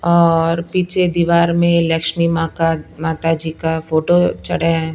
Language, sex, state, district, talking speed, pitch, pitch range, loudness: Hindi, female, Punjab, Pathankot, 155 wpm, 165 Hz, 165-170 Hz, -16 LUFS